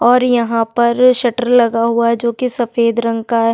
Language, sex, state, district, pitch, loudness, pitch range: Hindi, female, Chhattisgarh, Sukma, 235 Hz, -14 LUFS, 230-245 Hz